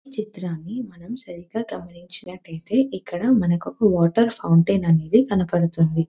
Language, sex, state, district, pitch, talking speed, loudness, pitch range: Telugu, female, Telangana, Nalgonda, 180 Hz, 110 wpm, -21 LUFS, 170-225 Hz